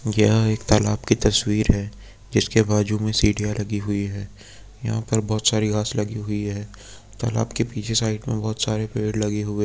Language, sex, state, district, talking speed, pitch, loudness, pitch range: Hindi, male, Uttar Pradesh, Muzaffarnagar, 205 wpm, 105 Hz, -22 LUFS, 105-110 Hz